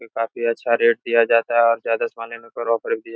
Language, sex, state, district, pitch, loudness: Hindi, male, Uttar Pradesh, Etah, 115 Hz, -20 LUFS